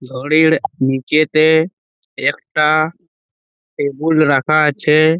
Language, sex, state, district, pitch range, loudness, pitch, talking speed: Bengali, male, West Bengal, Malda, 140-160 Hz, -15 LUFS, 155 Hz, 70 wpm